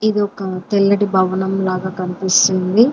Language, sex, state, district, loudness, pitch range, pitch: Telugu, female, Telangana, Mahabubabad, -16 LUFS, 185-205 Hz, 190 Hz